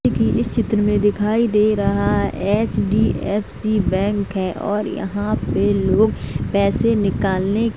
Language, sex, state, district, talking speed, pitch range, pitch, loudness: Hindi, female, Uttar Pradesh, Jalaun, 125 wpm, 200-215 Hz, 205 Hz, -19 LUFS